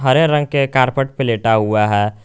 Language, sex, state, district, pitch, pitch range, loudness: Hindi, male, Jharkhand, Garhwa, 130 Hz, 105-135 Hz, -16 LUFS